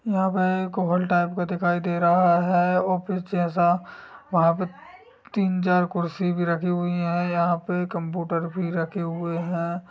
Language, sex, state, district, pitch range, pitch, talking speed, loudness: Hindi, male, Bihar, Sitamarhi, 170-185 Hz, 175 Hz, 170 wpm, -24 LUFS